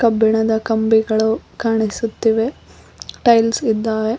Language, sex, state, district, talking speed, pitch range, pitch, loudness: Kannada, female, Karnataka, Koppal, 70 wpm, 220-230 Hz, 225 Hz, -17 LUFS